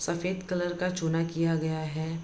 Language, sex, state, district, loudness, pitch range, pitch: Hindi, female, Bihar, Bhagalpur, -30 LUFS, 160-180 Hz, 165 Hz